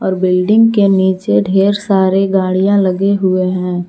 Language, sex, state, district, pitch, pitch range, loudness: Hindi, female, Jharkhand, Palamu, 190 Hz, 185-195 Hz, -12 LUFS